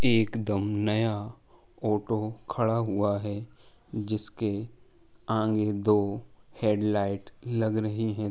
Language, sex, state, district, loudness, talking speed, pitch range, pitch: Hindi, male, Uttar Pradesh, Jalaun, -29 LUFS, 95 wpm, 105-115 Hz, 110 Hz